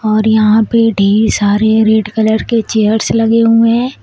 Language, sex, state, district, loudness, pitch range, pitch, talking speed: Hindi, female, Uttar Pradesh, Shamli, -11 LUFS, 215-225 Hz, 220 Hz, 180 wpm